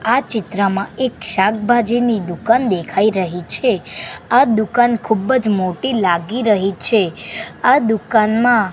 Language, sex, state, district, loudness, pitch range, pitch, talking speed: Gujarati, female, Gujarat, Gandhinagar, -16 LUFS, 195-240 Hz, 220 Hz, 115 wpm